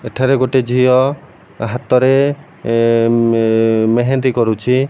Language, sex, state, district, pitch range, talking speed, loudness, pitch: Odia, male, Odisha, Malkangiri, 115-130 Hz, 100 wpm, -14 LUFS, 125 Hz